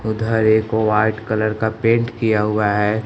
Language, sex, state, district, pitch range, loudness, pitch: Hindi, male, Bihar, West Champaran, 105-110 Hz, -18 LUFS, 110 Hz